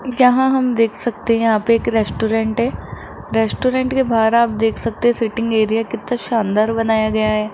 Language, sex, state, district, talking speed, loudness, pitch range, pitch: Hindi, male, Rajasthan, Jaipur, 185 wpm, -17 LUFS, 220-240 Hz, 230 Hz